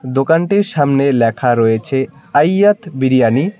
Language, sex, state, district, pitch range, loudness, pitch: Bengali, male, West Bengal, Cooch Behar, 130-165 Hz, -14 LUFS, 135 Hz